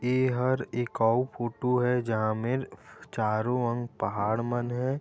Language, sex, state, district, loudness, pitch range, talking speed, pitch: Chhattisgarhi, male, Chhattisgarh, Raigarh, -28 LUFS, 115-125 Hz, 155 wpm, 120 Hz